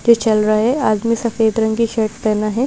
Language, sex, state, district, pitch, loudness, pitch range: Hindi, female, Madhya Pradesh, Bhopal, 220 Hz, -16 LUFS, 215-230 Hz